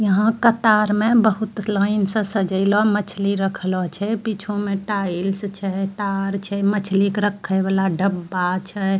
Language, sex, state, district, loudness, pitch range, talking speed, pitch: Angika, female, Bihar, Bhagalpur, -20 LUFS, 195-210 Hz, 140 wpm, 200 Hz